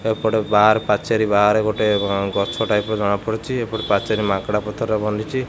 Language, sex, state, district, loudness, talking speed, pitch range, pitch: Odia, male, Odisha, Khordha, -19 LUFS, 165 wpm, 105-110 Hz, 105 Hz